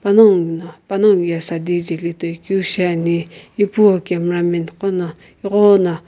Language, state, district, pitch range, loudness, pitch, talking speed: Sumi, Nagaland, Kohima, 170-195 Hz, -16 LUFS, 175 Hz, 130 wpm